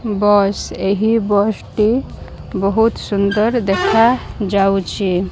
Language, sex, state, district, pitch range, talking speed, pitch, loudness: Odia, female, Odisha, Malkangiri, 195-220 Hz, 70 wpm, 205 Hz, -16 LUFS